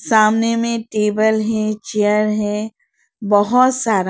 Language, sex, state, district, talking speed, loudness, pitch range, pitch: Hindi, female, Arunachal Pradesh, Lower Dibang Valley, 115 wpm, -17 LUFS, 210-230 Hz, 215 Hz